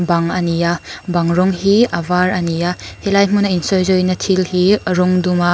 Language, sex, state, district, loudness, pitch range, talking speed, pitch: Mizo, female, Mizoram, Aizawl, -15 LUFS, 175-190 Hz, 215 wpm, 180 Hz